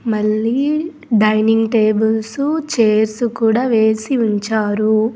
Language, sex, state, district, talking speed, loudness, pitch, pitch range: Telugu, female, Andhra Pradesh, Sri Satya Sai, 80 wpm, -16 LUFS, 220 Hz, 215-240 Hz